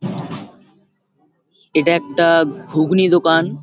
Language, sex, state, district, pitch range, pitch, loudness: Bengali, male, West Bengal, Paschim Medinipur, 155-175 Hz, 165 Hz, -16 LUFS